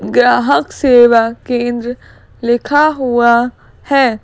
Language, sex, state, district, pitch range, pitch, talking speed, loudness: Hindi, female, Madhya Pradesh, Bhopal, 235-260 Hz, 240 Hz, 85 wpm, -12 LUFS